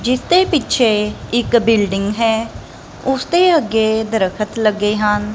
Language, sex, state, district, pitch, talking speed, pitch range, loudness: Punjabi, female, Punjab, Kapurthala, 220 Hz, 125 wpm, 210-250 Hz, -16 LUFS